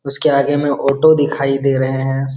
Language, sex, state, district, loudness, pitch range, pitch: Hindi, male, Bihar, Jamui, -15 LUFS, 135-145 Hz, 140 Hz